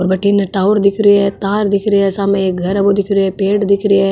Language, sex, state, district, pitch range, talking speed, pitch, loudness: Marwari, female, Rajasthan, Nagaur, 195-200 Hz, 320 wpm, 200 Hz, -13 LUFS